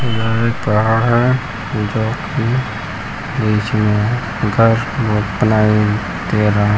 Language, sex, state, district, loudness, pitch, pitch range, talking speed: Hindi, male, Uttarakhand, Uttarkashi, -16 LUFS, 110 Hz, 105-120 Hz, 130 wpm